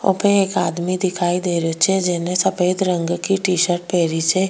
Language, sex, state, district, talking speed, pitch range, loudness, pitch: Rajasthani, female, Rajasthan, Nagaur, 215 wpm, 175-190 Hz, -18 LUFS, 180 Hz